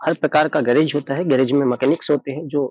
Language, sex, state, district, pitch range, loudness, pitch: Hindi, male, Uttar Pradesh, Jyotiba Phule Nagar, 135-155 Hz, -18 LUFS, 145 Hz